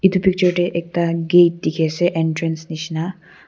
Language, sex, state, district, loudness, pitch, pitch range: Nagamese, female, Nagaland, Kohima, -19 LUFS, 170 Hz, 165-180 Hz